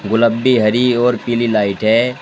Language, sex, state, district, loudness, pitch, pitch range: Hindi, male, Uttar Pradesh, Shamli, -14 LUFS, 120 Hz, 110-120 Hz